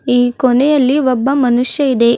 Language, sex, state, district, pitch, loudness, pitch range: Kannada, female, Karnataka, Bidar, 255 Hz, -13 LUFS, 245-275 Hz